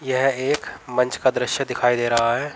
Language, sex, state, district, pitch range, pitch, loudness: Hindi, male, Uttar Pradesh, Varanasi, 120-130 Hz, 125 Hz, -21 LUFS